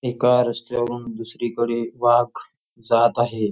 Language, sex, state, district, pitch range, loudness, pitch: Marathi, male, Maharashtra, Nagpur, 115-120 Hz, -21 LUFS, 120 Hz